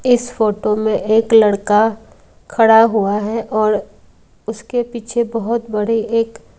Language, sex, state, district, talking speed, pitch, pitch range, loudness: Hindi, female, Maharashtra, Mumbai Suburban, 135 wpm, 225 Hz, 215-230 Hz, -16 LUFS